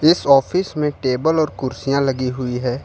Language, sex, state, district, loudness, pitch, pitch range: Hindi, male, Jharkhand, Ranchi, -18 LUFS, 135 Hz, 130-155 Hz